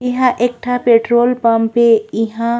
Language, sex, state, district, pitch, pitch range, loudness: Chhattisgarhi, female, Chhattisgarh, Korba, 235 Hz, 230-245 Hz, -14 LUFS